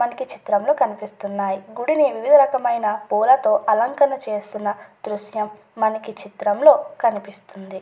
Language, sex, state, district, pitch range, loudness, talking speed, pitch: Telugu, female, Andhra Pradesh, Guntur, 205-260 Hz, -20 LUFS, 130 wpm, 215 Hz